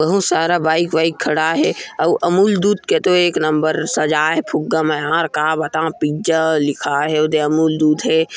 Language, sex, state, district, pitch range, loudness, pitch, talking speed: Chhattisgarhi, male, Chhattisgarh, Kabirdham, 155-165 Hz, -16 LUFS, 160 Hz, 185 wpm